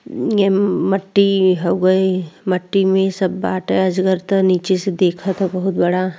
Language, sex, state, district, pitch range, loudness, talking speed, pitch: Bhojpuri, female, Uttar Pradesh, Deoria, 185-195 Hz, -17 LUFS, 145 wpm, 190 Hz